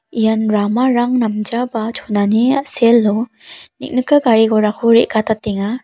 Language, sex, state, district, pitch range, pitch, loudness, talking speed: Garo, female, Meghalaya, South Garo Hills, 215-245 Hz, 225 Hz, -15 LUFS, 105 wpm